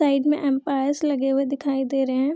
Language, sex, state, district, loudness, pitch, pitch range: Hindi, female, Bihar, Madhepura, -23 LUFS, 275 Hz, 270-285 Hz